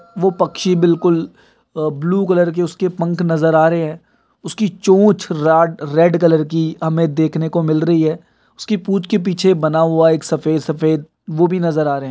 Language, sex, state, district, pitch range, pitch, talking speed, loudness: Hindi, male, Bihar, Kishanganj, 160-185 Hz, 165 Hz, 190 wpm, -16 LUFS